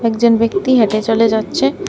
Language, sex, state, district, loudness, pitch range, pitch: Bengali, female, Tripura, West Tripura, -14 LUFS, 215-230 Hz, 225 Hz